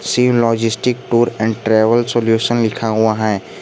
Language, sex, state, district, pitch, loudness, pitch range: Hindi, male, Jharkhand, Garhwa, 115 Hz, -15 LUFS, 110-120 Hz